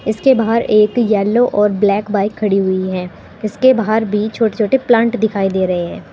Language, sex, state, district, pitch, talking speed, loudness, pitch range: Hindi, female, Uttar Pradesh, Saharanpur, 215 Hz, 195 wpm, -15 LUFS, 200-230 Hz